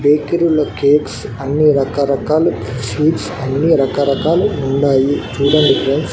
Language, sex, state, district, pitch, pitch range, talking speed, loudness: Telugu, male, Andhra Pradesh, Annamaya, 140 Hz, 135-150 Hz, 115 wpm, -15 LUFS